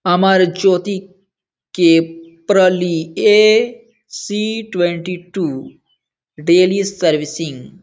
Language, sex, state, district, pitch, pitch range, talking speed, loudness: Hindi, male, Bihar, Jamui, 185 Hz, 165-195 Hz, 70 wpm, -15 LUFS